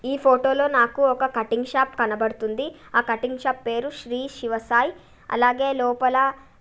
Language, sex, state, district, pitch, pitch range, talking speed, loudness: Telugu, female, Telangana, Nalgonda, 255 Hz, 235-270 Hz, 165 wpm, -22 LUFS